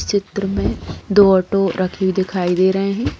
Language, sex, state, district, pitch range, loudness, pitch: Hindi, female, Bihar, Lakhisarai, 185-200 Hz, -17 LUFS, 195 Hz